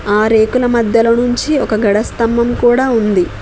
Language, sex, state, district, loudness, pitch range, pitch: Telugu, female, Telangana, Mahabubabad, -13 LUFS, 215-245 Hz, 230 Hz